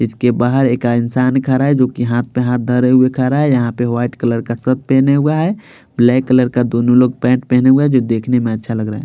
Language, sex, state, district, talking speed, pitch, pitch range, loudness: Hindi, male, Bihar, Patna, 280 wpm, 125 Hz, 120-130 Hz, -14 LUFS